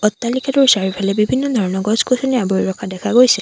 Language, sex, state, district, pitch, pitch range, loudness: Assamese, female, Assam, Sonitpur, 210 Hz, 195-255 Hz, -16 LUFS